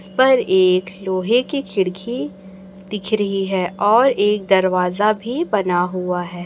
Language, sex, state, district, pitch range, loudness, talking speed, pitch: Hindi, male, Chhattisgarh, Raipur, 185-215 Hz, -18 LUFS, 140 wpm, 195 Hz